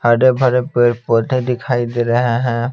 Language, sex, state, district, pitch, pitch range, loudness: Hindi, male, Bihar, Patna, 120 Hz, 120-125 Hz, -16 LUFS